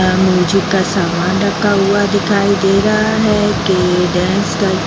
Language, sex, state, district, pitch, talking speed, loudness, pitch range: Hindi, female, Bihar, Vaishali, 195 Hz, 125 wpm, -13 LUFS, 185-205 Hz